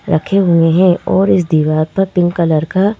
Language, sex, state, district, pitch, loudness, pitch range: Hindi, female, Madhya Pradesh, Bhopal, 175 Hz, -13 LUFS, 160-190 Hz